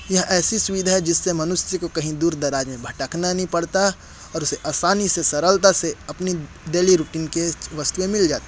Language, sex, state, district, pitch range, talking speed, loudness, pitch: Hindi, male, Chhattisgarh, Korba, 160-185 Hz, 190 wpm, -20 LUFS, 175 Hz